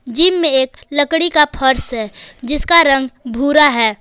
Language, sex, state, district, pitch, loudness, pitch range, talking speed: Hindi, female, Jharkhand, Palamu, 275 Hz, -13 LUFS, 250-300 Hz, 165 wpm